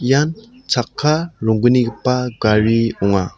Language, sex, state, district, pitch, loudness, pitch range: Garo, male, Meghalaya, South Garo Hills, 125 Hz, -17 LUFS, 110-150 Hz